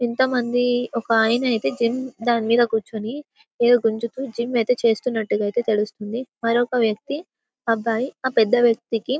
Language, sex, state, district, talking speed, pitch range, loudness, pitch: Telugu, female, Telangana, Karimnagar, 150 wpm, 225-250 Hz, -21 LUFS, 235 Hz